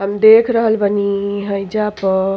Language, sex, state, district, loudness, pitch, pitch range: Bhojpuri, female, Uttar Pradesh, Ghazipur, -15 LUFS, 200 Hz, 200-215 Hz